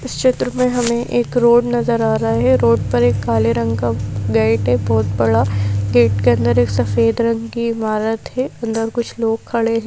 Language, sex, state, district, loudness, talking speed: Hindi, female, Madhya Pradesh, Bhopal, -17 LUFS, 205 wpm